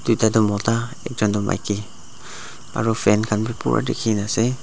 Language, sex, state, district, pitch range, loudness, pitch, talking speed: Nagamese, male, Nagaland, Dimapur, 105-115 Hz, -21 LUFS, 110 Hz, 155 wpm